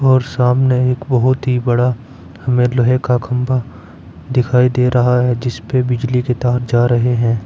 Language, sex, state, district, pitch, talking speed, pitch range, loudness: Hindi, male, Uttar Pradesh, Saharanpur, 125 Hz, 170 wpm, 120-125 Hz, -15 LUFS